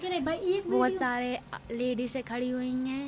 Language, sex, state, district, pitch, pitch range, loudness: Hindi, female, Jharkhand, Sahebganj, 250 Hz, 245-280 Hz, -31 LUFS